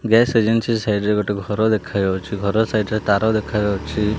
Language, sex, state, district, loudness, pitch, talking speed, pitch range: Odia, male, Odisha, Malkangiri, -19 LUFS, 105 Hz, 155 wpm, 100-110 Hz